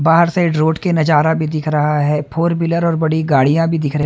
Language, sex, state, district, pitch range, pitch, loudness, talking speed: Hindi, male, Haryana, Charkhi Dadri, 150-165 Hz, 160 Hz, -15 LUFS, 250 wpm